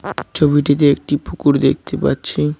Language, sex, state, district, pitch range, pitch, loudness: Bengali, male, West Bengal, Cooch Behar, 145-150 Hz, 145 Hz, -16 LUFS